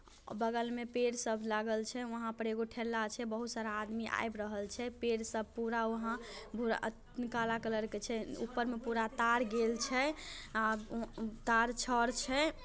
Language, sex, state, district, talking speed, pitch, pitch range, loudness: Maithili, male, Bihar, Samastipur, 165 wpm, 230 Hz, 220-240 Hz, -37 LUFS